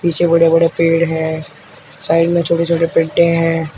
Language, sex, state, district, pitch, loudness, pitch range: Hindi, male, Uttar Pradesh, Shamli, 165 Hz, -14 LUFS, 165-170 Hz